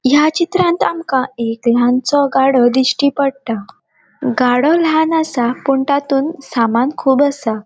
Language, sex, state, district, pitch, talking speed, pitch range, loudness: Konkani, female, Goa, North and South Goa, 270 Hz, 125 wpm, 245-290 Hz, -15 LUFS